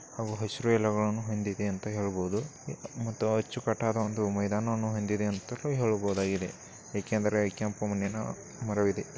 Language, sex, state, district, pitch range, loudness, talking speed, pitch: Kannada, male, Karnataka, Chamarajanagar, 100-110 Hz, -31 LUFS, 105 wpm, 105 Hz